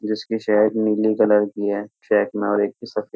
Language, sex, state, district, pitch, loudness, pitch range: Hindi, male, Uttar Pradesh, Jyotiba Phule Nagar, 105 Hz, -20 LUFS, 105-110 Hz